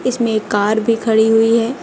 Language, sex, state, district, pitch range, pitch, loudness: Hindi, female, Uttar Pradesh, Lucknow, 220-230 Hz, 225 Hz, -15 LUFS